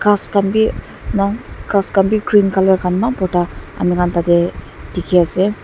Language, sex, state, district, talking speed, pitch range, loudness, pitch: Nagamese, female, Nagaland, Dimapur, 170 wpm, 180-205 Hz, -16 LUFS, 190 Hz